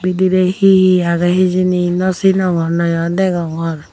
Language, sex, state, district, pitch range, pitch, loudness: Chakma, female, Tripura, Unakoti, 170-185 Hz, 180 Hz, -14 LUFS